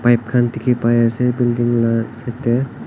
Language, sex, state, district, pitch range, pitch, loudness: Nagamese, male, Nagaland, Kohima, 115-125 Hz, 120 Hz, -17 LUFS